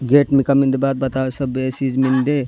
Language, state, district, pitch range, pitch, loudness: Gondi, Chhattisgarh, Sukma, 130-140 Hz, 135 Hz, -18 LUFS